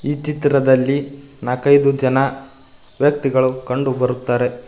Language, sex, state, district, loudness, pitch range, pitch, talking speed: Kannada, male, Karnataka, Koppal, -17 LUFS, 130-140 Hz, 135 Hz, 75 wpm